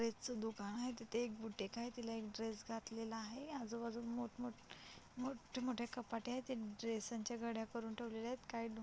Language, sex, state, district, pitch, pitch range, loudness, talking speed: Marathi, female, Maharashtra, Chandrapur, 230 Hz, 225-240 Hz, -46 LUFS, 205 wpm